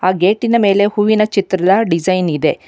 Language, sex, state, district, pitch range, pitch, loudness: Kannada, female, Karnataka, Bangalore, 185-210 Hz, 195 Hz, -14 LUFS